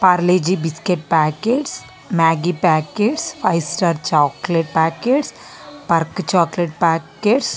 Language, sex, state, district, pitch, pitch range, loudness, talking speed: Telugu, female, Andhra Pradesh, Visakhapatnam, 175 Hz, 165-205 Hz, -18 LUFS, 105 wpm